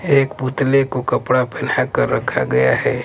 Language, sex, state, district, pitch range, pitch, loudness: Hindi, male, Punjab, Pathankot, 125-135 Hz, 130 Hz, -18 LUFS